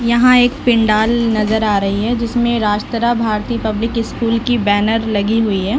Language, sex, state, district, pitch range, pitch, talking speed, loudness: Hindi, female, Bihar, Lakhisarai, 215-235 Hz, 225 Hz, 175 wpm, -15 LUFS